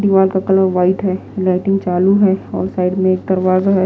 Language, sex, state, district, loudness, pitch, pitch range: Hindi, female, Himachal Pradesh, Shimla, -15 LUFS, 190 Hz, 185-195 Hz